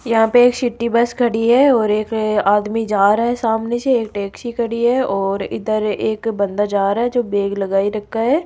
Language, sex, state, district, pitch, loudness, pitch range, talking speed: Hindi, female, Rajasthan, Jaipur, 225 Hz, -17 LUFS, 205-240 Hz, 215 wpm